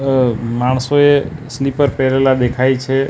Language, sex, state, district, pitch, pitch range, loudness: Gujarati, male, Gujarat, Gandhinagar, 135 Hz, 130-135 Hz, -15 LUFS